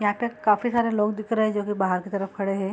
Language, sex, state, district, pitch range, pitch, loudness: Hindi, female, Bihar, Saharsa, 195-220 Hz, 210 Hz, -24 LUFS